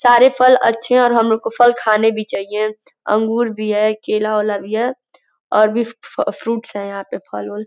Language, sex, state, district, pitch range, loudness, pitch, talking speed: Hindi, female, Uttar Pradesh, Gorakhpur, 215-240 Hz, -16 LUFS, 225 Hz, 195 wpm